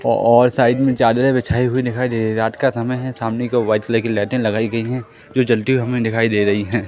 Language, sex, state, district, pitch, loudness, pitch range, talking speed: Hindi, male, Madhya Pradesh, Katni, 120 Hz, -17 LUFS, 115-125 Hz, 280 wpm